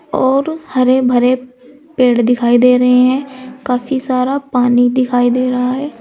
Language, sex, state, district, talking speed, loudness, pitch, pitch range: Hindi, female, Uttar Pradesh, Saharanpur, 160 wpm, -13 LUFS, 255 Hz, 250-260 Hz